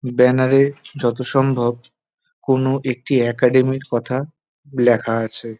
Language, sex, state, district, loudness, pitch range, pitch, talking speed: Bengali, male, West Bengal, North 24 Parganas, -18 LUFS, 120-135 Hz, 130 Hz, 120 wpm